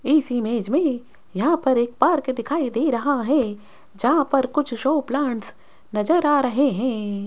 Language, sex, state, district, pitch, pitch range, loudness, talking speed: Hindi, female, Rajasthan, Jaipur, 265 Hz, 235-295 Hz, -21 LUFS, 165 wpm